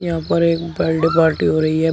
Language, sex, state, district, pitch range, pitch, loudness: Hindi, male, Uttar Pradesh, Shamli, 160-170 Hz, 165 Hz, -17 LUFS